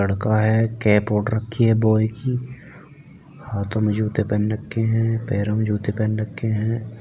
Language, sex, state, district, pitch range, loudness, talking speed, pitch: Hindi, male, Uttar Pradesh, Jalaun, 105-115 Hz, -21 LUFS, 180 wpm, 110 Hz